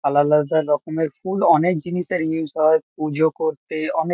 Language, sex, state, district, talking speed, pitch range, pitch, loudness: Bengali, male, West Bengal, Kolkata, 160 wpm, 155-165 Hz, 160 Hz, -20 LUFS